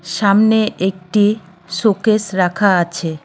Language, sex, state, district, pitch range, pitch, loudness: Bengali, female, West Bengal, Cooch Behar, 180-215 Hz, 195 Hz, -15 LUFS